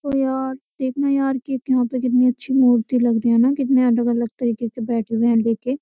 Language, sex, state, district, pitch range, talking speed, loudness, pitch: Hindi, female, Uttar Pradesh, Jyotiba Phule Nagar, 235-265 Hz, 225 wpm, -19 LUFS, 250 Hz